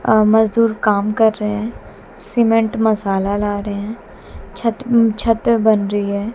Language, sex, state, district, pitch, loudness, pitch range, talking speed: Hindi, female, Haryana, Jhajjar, 220 Hz, -16 LUFS, 205-225 Hz, 160 wpm